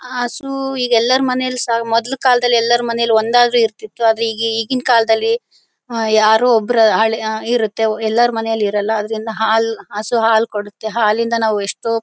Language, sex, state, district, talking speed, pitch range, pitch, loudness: Kannada, female, Karnataka, Bellary, 160 wpm, 220-245 Hz, 230 Hz, -16 LUFS